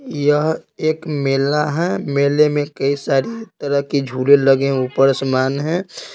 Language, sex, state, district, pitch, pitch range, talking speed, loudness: Hindi, male, Bihar, Patna, 145 Hz, 135-155 Hz, 145 wpm, -17 LUFS